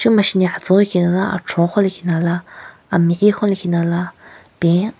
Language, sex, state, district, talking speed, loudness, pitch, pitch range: Rengma, female, Nagaland, Kohima, 110 wpm, -16 LUFS, 180 Hz, 170-195 Hz